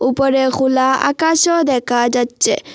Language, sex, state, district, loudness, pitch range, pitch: Bengali, female, Assam, Hailakandi, -15 LUFS, 255-285 Hz, 265 Hz